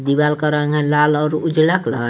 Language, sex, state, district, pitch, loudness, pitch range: Hindi, male, Jharkhand, Garhwa, 150 Hz, -16 LUFS, 150-155 Hz